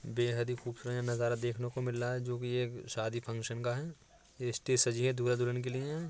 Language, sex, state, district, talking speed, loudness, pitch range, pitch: Hindi, male, Uttar Pradesh, Etah, 245 wpm, -35 LUFS, 120-125 Hz, 120 Hz